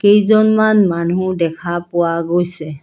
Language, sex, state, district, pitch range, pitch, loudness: Assamese, female, Assam, Kamrup Metropolitan, 170-205 Hz, 175 Hz, -15 LUFS